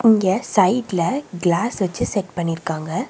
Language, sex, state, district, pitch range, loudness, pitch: Tamil, female, Tamil Nadu, Nilgiris, 175-230 Hz, -20 LUFS, 190 Hz